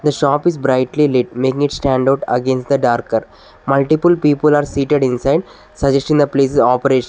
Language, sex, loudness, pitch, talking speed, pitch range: English, male, -15 LUFS, 140 Hz, 195 wpm, 130-145 Hz